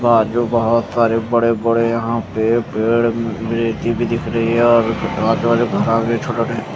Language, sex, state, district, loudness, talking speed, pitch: Hindi, male, Chandigarh, Chandigarh, -17 LUFS, 140 wpm, 115 Hz